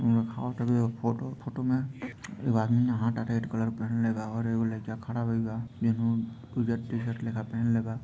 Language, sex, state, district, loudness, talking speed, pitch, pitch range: Bhojpuri, male, Bihar, Sitamarhi, -30 LUFS, 90 wpm, 115 Hz, 115-120 Hz